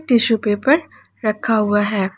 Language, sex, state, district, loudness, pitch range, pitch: Hindi, female, Jharkhand, Ranchi, -18 LUFS, 210-240 Hz, 215 Hz